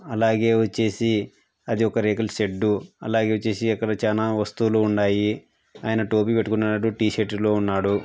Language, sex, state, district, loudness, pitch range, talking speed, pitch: Telugu, male, Andhra Pradesh, Anantapur, -23 LUFS, 105-110 Hz, 135 wpm, 110 Hz